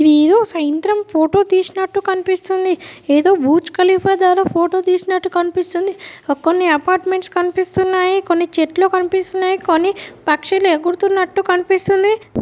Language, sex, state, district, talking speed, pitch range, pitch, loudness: Telugu, female, Telangana, Nalgonda, 110 wpm, 345-380 Hz, 370 Hz, -15 LUFS